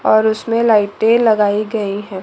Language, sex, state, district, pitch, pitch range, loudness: Hindi, female, Chandigarh, Chandigarh, 215 Hz, 205-225 Hz, -15 LUFS